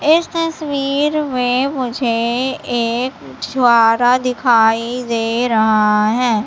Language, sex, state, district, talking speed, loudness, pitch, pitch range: Hindi, female, Madhya Pradesh, Katni, 95 wpm, -16 LUFS, 245 Hz, 230-265 Hz